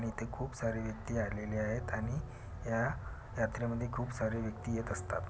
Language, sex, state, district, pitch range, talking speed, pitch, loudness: Marathi, male, Maharashtra, Pune, 105-120 Hz, 160 wpm, 115 Hz, -38 LUFS